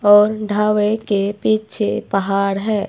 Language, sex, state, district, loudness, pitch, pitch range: Hindi, female, Himachal Pradesh, Shimla, -17 LUFS, 210 Hz, 200-215 Hz